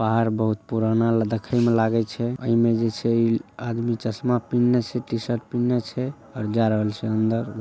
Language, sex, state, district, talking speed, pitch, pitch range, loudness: Maithili, male, Bihar, Saharsa, 190 wpm, 115 Hz, 110-120 Hz, -23 LUFS